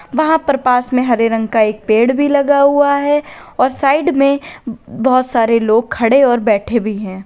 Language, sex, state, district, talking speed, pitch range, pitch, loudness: Hindi, female, Uttar Pradesh, Lalitpur, 200 wpm, 230-280 Hz, 250 Hz, -13 LUFS